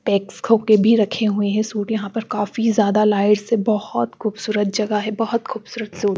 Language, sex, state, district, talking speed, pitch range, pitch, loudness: Hindi, female, Bihar, Katihar, 195 wpm, 205-225 Hz, 215 Hz, -19 LUFS